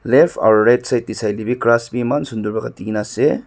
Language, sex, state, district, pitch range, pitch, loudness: Nagamese, male, Nagaland, Dimapur, 110-120 Hz, 115 Hz, -17 LUFS